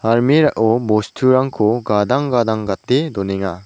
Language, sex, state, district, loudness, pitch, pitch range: Garo, male, Meghalaya, South Garo Hills, -16 LUFS, 115 Hz, 105-130 Hz